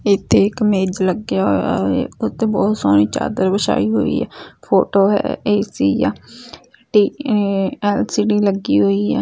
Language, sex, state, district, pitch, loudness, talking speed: Punjabi, female, Punjab, Fazilka, 195 Hz, -17 LUFS, 145 wpm